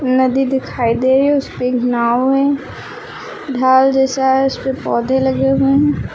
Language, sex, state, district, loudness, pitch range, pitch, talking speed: Hindi, female, Uttar Pradesh, Lucknow, -15 LUFS, 260-270 Hz, 265 Hz, 165 wpm